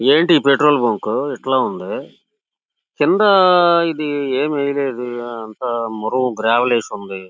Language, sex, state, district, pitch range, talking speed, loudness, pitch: Telugu, male, Andhra Pradesh, Guntur, 120-170 Hz, 115 wpm, -17 LUFS, 135 Hz